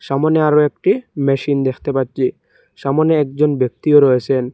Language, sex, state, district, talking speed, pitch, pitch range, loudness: Bengali, male, Assam, Hailakandi, 130 wpm, 140 Hz, 135-150 Hz, -16 LUFS